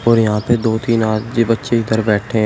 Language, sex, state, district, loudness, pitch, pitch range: Hindi, male, Uttar Pradesh, Shamli, -16 LUFS, 115 Hz, 110-115 Hz